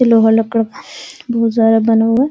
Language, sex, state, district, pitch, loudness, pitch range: Hindi, female, Bihar, Araria, 225 Hz, -13 LUFS, 225-235 Hz